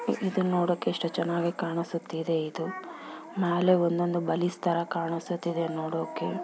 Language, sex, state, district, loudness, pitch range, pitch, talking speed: Kannada, female, Karnataka, Bellary, -29 LUFS, 165-175 Hz, 170 Hz, 100 wpm